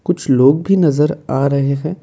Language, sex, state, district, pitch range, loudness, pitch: Hindi, male, Assam, Kamrup Metropolitan, 140-175 Hz, -14 LUFS, 150 Hz